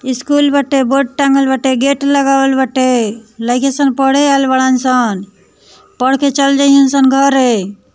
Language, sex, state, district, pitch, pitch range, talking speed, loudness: Bhojpuri, female, Bihar, East Champaran, 270 Hz, 255-275 Hz, 145 wpm, -12 LUFS